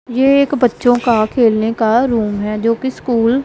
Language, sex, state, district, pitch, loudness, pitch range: Hindi, female, Punjab, Pathankot, 235 Hz, -14 LUFS, 225-260 Hz